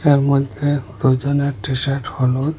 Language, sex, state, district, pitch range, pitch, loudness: Bengali, male, Assam, Hailakandi, 130-145 Hz, 140 Hz, -18 LUFS